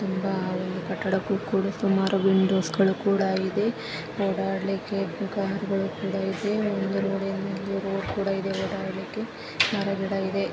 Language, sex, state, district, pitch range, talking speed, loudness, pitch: Kannada, female, Karnataka, Gulbarga, 195-200 Hz, 130 wpm, -27 LUFS, 195 Hz